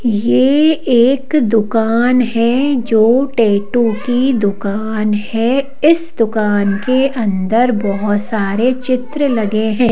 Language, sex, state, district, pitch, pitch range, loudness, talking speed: Hindi, female, Madhya Pradesh, Bhopal, 230 Hz, 215-255 Hz, -14 LUFS, 110 wpm